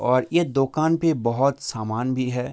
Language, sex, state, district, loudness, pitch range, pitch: Hindi, male, Bihar, Kishanganj, -22 LUFS, 125-155 Hz, 130 Hz